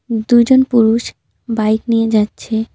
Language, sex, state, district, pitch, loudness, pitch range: Bengali, female, West Bengal, Cooch Behar, 225 Hz, -14 LUFS, 220-235 Hz